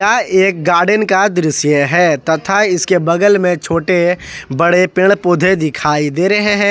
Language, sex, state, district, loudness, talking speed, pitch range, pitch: Hindi, male, Jharkhand, Ranchi, -12 LUFS, 150 wpm, 165-195 Hz, 180 Hz